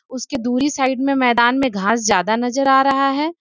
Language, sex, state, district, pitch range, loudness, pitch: Hindi, female, Jharkhand, Sahebganj, 240-275 Hz, -17 LUFS, 260 Hz